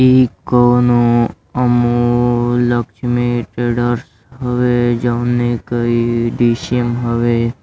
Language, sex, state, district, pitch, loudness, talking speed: Bhojpuri, male, Uttar Pradesh, Deoria, 120 Hz, -15 LUFS, 80 wpm